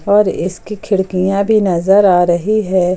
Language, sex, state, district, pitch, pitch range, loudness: Hindi, female, Jharkhand, Palamu, 190 Hz, 180-205 Hz, -13 LUFS